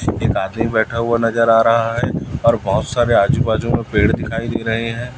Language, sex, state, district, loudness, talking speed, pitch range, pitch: Hindi, male, Chhattisgarh, Raipur, -17 LUFS, 220 wpm, 115-120 Hz, 115 Hz